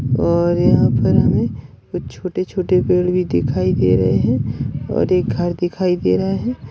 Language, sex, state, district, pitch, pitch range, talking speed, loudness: Hindi, male, Maharashtra, Dhule, 175 Hz, 125-180 Hz, 180 wpm, -17 LUFS